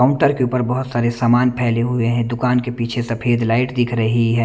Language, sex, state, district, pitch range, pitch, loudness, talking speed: Hindi, male, Chandigarh, Chandigarh, 115-125 Hz, 120 Hz, -18 LUFS, 230 wpm